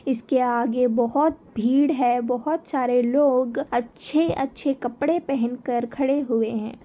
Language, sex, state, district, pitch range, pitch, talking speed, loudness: Hindi, female, Maharashtra, Nagpur, 240-280 Hz, 250 Hz, 130 wpm, -23 LUFS